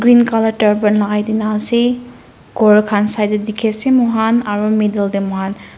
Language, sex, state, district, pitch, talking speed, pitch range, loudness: Nagamese, female, Nagaland, Dimapur, 215 Hz, 175 wpm, 210-225 Hz, -15 LUFS